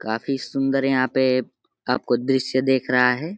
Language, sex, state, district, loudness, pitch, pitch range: Hindi, male, Uttar Pradesh, Deoria, -21 LUFS, 130 Hz, 125-135 Hz